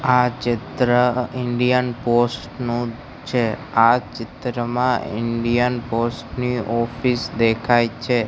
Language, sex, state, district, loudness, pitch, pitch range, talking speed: Gujarati, male, Gujarat, Gandhinagar, -20 LUFS, 120 Hz, 115-125 Hz, 100 wpm